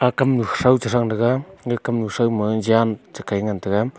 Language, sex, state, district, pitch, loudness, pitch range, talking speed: Wancho, male, Arunachal Pradesh, Longding, 115 Hz, -20 LUFS, 110-125 Hz, 225 wpm